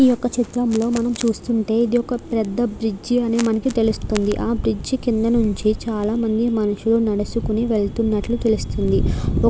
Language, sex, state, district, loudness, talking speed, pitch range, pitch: Telugu, female, Andhra Pradesh, Krishna, -20 LUFS, 160 wpm, 215-235 Hz, 225 Hz